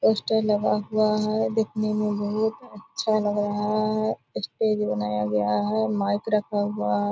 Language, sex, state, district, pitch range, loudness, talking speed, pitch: Hindi, female, Bihar, Purnia, 145-215 Hz, -25 LUFS, 185 wpm, 210 Hz